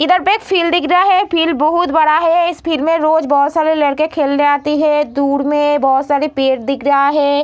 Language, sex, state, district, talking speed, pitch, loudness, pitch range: Hindi, female, Bihar, Samastipur, 235 wpm, 305 Hz, -13 LUFS, 285-330 Hz